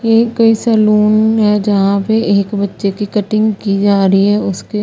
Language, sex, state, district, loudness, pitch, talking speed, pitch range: Hindi, female, Chandigarh, Chandigarh, -12 LUFS, 210 Hz, 185 wpm, 200-220 Hz